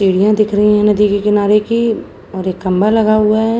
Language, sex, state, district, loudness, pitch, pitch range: Hindi, female, Uttar Pradesh, Jalaun, -13 LUFS, 210 Hz, 200-215 Hz